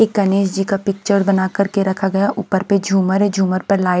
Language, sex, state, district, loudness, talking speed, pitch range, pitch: Hindi, female, Himachal Pradesh, Shimla, -17 LUFS, 270 wpm, 190-200 Hz, 195 Hz